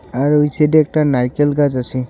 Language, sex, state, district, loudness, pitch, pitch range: Bengali, male, West Bengal, Alipurduar, -15 LUFS, 145 Hz, 125-150 Hz